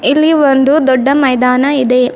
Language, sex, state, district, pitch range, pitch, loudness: Kannada, female, Karnataka, Bidar, 250-285 Hz, 270 Hz, -10 LUFS